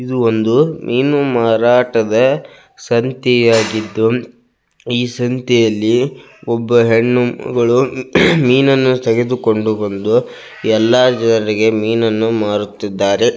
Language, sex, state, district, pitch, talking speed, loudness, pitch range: Kannada, male, Karnataka, Belgaum, 115 Hz, 75 wpm, -14 LUFS, 110-125 Hz